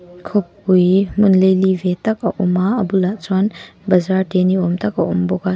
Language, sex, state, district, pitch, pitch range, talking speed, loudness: Mizo, female, Mizoram, Aizawl, 190 Hz, 180-200 Hz, 215 wpm, -16 LUFS